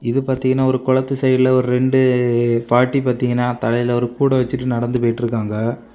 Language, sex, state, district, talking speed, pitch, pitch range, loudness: Tamil, male, Tamil Nadu, Kanyakumari, 150 wpm, 125 Hz, 120-130 Hz, -17 LUFS